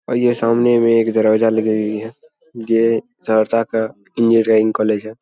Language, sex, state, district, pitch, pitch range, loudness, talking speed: Hindi, male, Bihar, Saharsa, 115 Hz, 110-115 Hz, -16 LUFS, 175 wpm